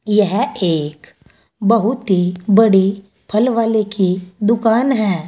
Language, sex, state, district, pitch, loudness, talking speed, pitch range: Hindi, female, Uttar Pradesh, Saharanpur, 205 Hz, -16 LUFS, 115 wpm, 185-225 Hz